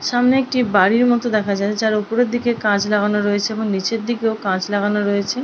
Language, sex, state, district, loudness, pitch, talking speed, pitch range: Bengali, female, West Bengal, Paschim Medinipur, -18 LUFS, 215 Hz, 200 wpm, 205-240 Hz